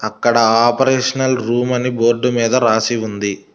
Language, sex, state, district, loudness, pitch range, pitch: Telugu, male, Telangana, Hyderabad, -15 LUFS, 115-125 Hz, 120 Hz